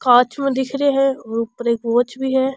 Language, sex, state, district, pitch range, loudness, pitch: Rajasthani, female, Rajasthan, Churu, 240-270 Hz, -19 LUFS, 260 Hz